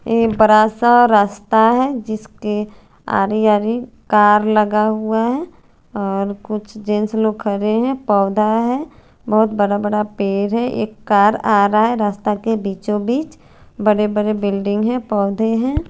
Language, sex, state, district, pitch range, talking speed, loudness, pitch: Hindi, female, Chandigarh, Chandigarh, 210-225 Hz, 155 wpm, -16 LUFS, 215 Hz